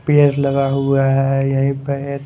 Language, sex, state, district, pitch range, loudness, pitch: Hindi, male, Haryana, Rohtak, 135-140 Hz, -16 LUFS, 140 Hz